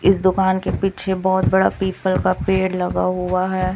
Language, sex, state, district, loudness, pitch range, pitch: Hindi, female, Chhattisgarh, Raipur, -19 LUFS, 185-190 Hz, 190 Hz